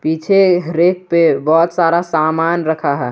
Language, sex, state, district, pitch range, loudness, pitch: Hindi, male, Jharkhand, Garhwa, 160-175 Hz, -14 LUFS, 165 Hz